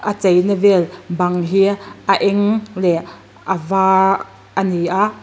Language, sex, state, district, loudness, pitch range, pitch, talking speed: Mizo, female, Mizoram, Aizawl, -16 LUFS, 180-200 Hz, 190 Hz, 160 wpm